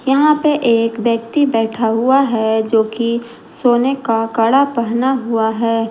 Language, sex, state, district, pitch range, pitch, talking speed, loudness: Hindi, female, Jharkhand, Garhwa, 225-265 Hz, 235 Hz, 140 wpm, -15 LUFS